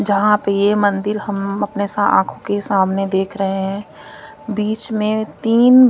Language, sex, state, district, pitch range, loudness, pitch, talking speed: Hindi, female, Punjab, Kapurthala, 200-215 Hz, -17 LUFS, 205 Hz, 160 wpm